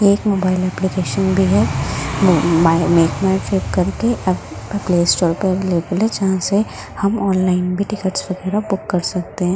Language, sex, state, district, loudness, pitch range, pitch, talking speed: Hindi, female, Delhi, New Delhi, -17 LUFS, 165-195 Hz, 185 Hz, 165 wpm